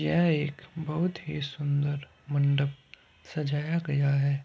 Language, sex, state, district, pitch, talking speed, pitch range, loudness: Hindi, male, Uttar Pradesh, Hamirpur, 145 Hz, 120 wpm, 140-155 Hz, -29 LUFS